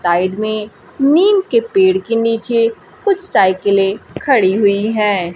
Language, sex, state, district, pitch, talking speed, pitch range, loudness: Hindi, female, Bihar, Kaimur, 215 Hz, 135 wpm, 190-230 Hz, -14 LUFS